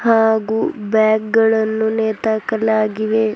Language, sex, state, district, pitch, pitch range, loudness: Kannada, female, Karnataka, Bidar, 220 Hz, 215-220 Hz, -17 LUFS